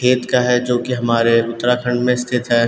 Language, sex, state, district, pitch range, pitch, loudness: Hindi, male, Uttarakhand, Tehri Garhwal, 120-125 Hz, 125 Hz, -17 LUFS